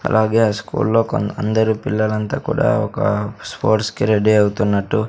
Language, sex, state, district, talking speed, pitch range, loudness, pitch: Telugu, male, Andhra Pradesh, Sri Satya Sai, 175 wpm, 105-115 Hz, -18 LUFS, 110 Hz